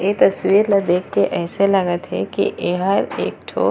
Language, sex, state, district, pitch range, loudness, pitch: Chhattisgarhi, female, Chhattisgarh, Raigarh, 180-200 Hz, -18 LUFS, 195 Hz